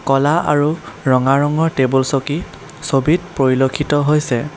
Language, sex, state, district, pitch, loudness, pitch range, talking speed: Assamese, male, Assam, Kamrup Metropolitan, 145 Hz, -16 LUFS, 135-150 Hz, 120 wpm